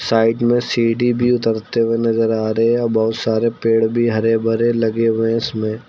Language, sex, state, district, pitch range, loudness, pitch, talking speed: Hindi, male, Uttar Pradesh, Lucknow, 110-115 Hz, -17 LUFS, 115 Hz, 215 wpm